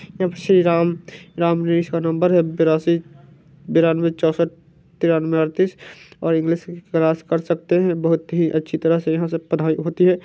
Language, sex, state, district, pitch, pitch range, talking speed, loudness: Hindi, male, Bihar, Vaishali, 165 Hz, 160-170 Hz, 175 wpm, -19 LUFS